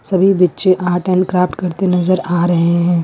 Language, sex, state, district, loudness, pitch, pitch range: Hindi, female, Jharkhand, Ranchi, -14 LUFS, 180 Hz, 175-185 Hz